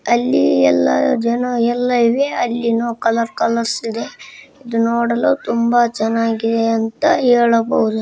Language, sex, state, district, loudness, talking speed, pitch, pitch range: Kannada, male, Karnataka, Bijapur, -16 LUFS, 105 wpm, 230 Hz, 225-240 Hz